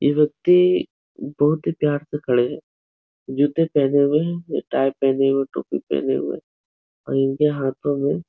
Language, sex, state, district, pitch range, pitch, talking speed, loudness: Hindi, male, Uttar Pradesh, Etah, 135-150 Hz, 145 Hz, 175 wpm, -20 LUFS